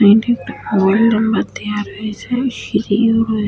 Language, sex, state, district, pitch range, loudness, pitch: Bengali, female, West Bengal, Jhargram, 205-225 Hz, -16 LUFS, 215 Hz